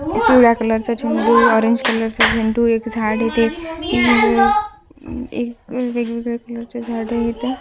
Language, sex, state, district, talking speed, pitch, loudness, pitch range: Marathi, female, Maharashtra, Washim, 125 wpm, 235 Hz, -17 LUFS, 230-245 Hz